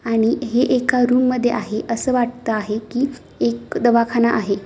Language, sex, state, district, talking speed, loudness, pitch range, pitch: Marathi, female, Maharashtra, Aurangabad, 170 wpm, -19 LUFS, 220-250 Hz, 235 Hz